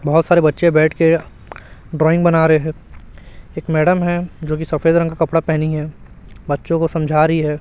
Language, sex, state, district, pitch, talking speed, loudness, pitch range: Hindi, male, Chhattisgarh, Raipur, 160 Hz, 205 wpm, -16 LUFS, 155-165 Hz